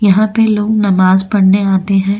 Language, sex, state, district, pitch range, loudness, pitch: Hindi, female, Goa, North and South Goa, 190-210 Hz, -11 LUFS, 200 Hz